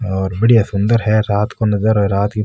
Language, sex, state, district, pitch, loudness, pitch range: Marwari, male, Rajasthan, Nagaur, 105 Hz, -15 LUFS, 100-110 Hz